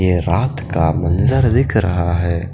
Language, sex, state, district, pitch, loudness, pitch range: Hindi, male, Punjab, Fazilka, 90 Hz, -16 LUFS, 85-125 Hz